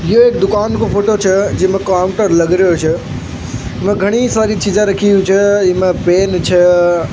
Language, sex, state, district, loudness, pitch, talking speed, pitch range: Marwari, male, Rajasthan, Churu, -12 LUFS, 195 Hz, 175 wpm, 180-205 Hz